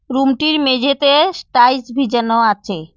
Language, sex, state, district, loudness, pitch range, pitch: Bengali, female, West Bengal, Cooch Behar, -14 LUFS, 235-280 Hz, 265 Hz